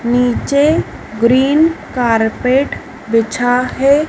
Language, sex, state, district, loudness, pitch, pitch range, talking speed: Hindi, female, Madhya Pradesh, Dhar, -14 LUFS, 250 Hz, 235-280 Hz, 75 wpm